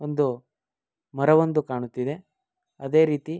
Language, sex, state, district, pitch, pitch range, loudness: Kannada, male, Karnataka, Mysore, 150 Hz, 135-160 Hz, -23 LUFS